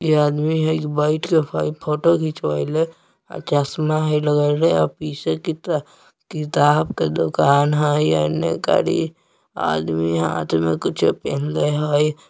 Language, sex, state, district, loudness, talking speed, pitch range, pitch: Bajjika, male, Bihar, Vaishali, -20 LUFS, 145 wpm, 140-155 Hz, 150 Hz